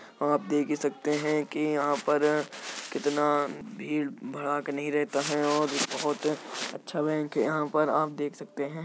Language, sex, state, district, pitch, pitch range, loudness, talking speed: Hindi, male, Uttar Pradesh, Jyotiba Phule Nagar, 150 Hz, 145-150 Hz, -29 LUFS, 170 wpm